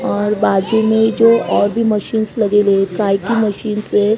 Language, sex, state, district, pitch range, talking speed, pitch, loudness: Hindi, female, Maharashtra, Mumbai Suburban, 205-220 Hz, 170 wpm, 215 Hz, -15 LUFS